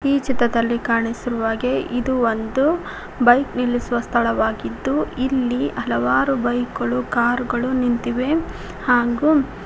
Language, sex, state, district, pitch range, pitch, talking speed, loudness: Kannada, female, Karnataka, Koppal, 235-260 Hz, 245 Hz, 110 wpm, -20 LUFS